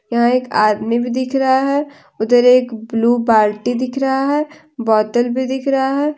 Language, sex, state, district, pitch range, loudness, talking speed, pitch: Hindi, female, Jharkhand, Deoghar, 235-270 Hz, -16 LUFS, 185 wpm, 250 Hz